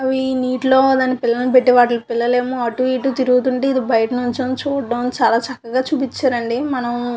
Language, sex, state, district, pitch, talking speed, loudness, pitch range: Telugu, female, Andhra Pradesh, Visakhapatnam, 255 Hz, 160 wpm, -17 LUFS, 240-260 Hz